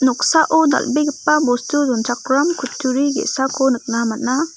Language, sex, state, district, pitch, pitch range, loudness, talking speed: Garo, female, Meghalaya, West Garo Hills, 270 Hz, 250-295 Hz, -17 LUFS, 105 wpm